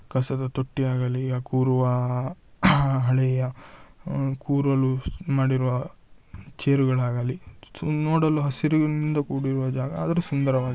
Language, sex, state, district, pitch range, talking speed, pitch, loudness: Kannada, male, Karnataka, Shimoga, 125-140 Hz, 70 wpm, 130 Hz, -24 LUFS